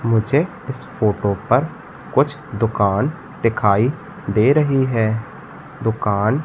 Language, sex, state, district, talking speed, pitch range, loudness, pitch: Hindi, male, Madhya Pradesh, Katni, 100 wpm, 105-140 Hz, -19 LUFS, 115 Hz